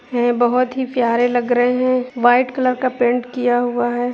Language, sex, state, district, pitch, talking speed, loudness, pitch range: Hindi, male, Jharkhand, Sahebganj, 245 Hz, 220 wpm, -17 LUFS, 240-250 Hz